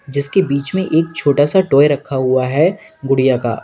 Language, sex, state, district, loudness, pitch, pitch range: Hindi, male, Uttar Pradesh, Lalitpur, -15 LUFS, 140 Hz, 135-165 Hz